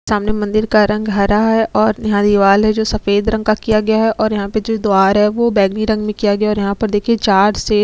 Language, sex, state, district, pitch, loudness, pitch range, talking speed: Hindi, female, Chhattisgarh, Sukma, 215 Hz, -14 LUFS, 205-220 Hz, 275 wpm